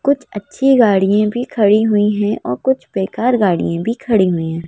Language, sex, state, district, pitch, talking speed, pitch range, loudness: Hindi, female, Madhya Pradesh, Bhopal, 210 Hz, 190 wpm, 195-240 Hz, -15 LUFS